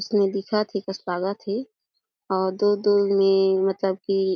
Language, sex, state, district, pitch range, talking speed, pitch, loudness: Chhattisgarhi, female, Chhattisgarh, Jashpur, 190-205 Hz, 165 wpm, 195 Hz, -23 LUFS